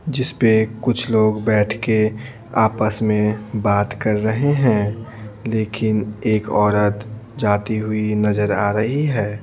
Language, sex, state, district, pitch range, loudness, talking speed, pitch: Hindi, male, Bihar, Patna, 105-115 Hz, -19 LUFS, 135 wpm, 110 Hz